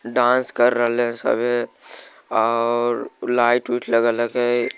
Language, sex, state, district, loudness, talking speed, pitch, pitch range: Magahi, male, Bihar, Jamui, -20 LUFS, 140 wpm, 120 Hz, 115-120 Hz